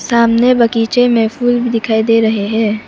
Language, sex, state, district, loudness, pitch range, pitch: Hindi, female, Arunachal Pradesh, Papum Pare, -12 LUFS, 220-240 Hz, 230 Hz